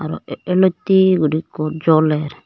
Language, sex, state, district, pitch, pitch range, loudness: Chakma, female, Tripura, Unakoti, 160 Hz, 155-185 Hz, -16 LUFS